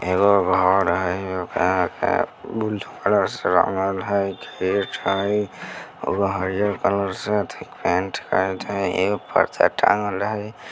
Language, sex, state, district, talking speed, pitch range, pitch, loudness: Bajjika, male, Bihar, Vaishali, 135 wpm, 95-100 Hz, 100 Hz, -22 LUFS